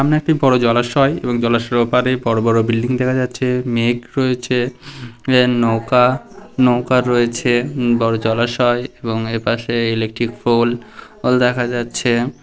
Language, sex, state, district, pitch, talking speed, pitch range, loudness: Bengali, male, West Bengal, Purulia, 120 Hz, 135 wpm, 120-125 Hz, -17 LUFS